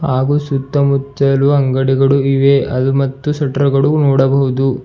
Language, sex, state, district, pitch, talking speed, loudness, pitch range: Kannada, male, Karnataka, Bidar, 135 Hz, 110 wpm, -14 LUFS, 135-140 Hz